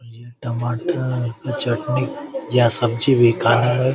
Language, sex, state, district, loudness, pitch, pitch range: Hindi, male, Bihar, Vaishali, -19 LUFS, 120 Hz, 120-130 Hz